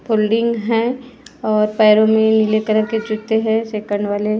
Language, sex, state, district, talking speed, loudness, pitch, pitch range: Hindi, female, Maharashtra, Gondia, 175 wpm, -16 LUFS, 220 Hz, 215-225 Hz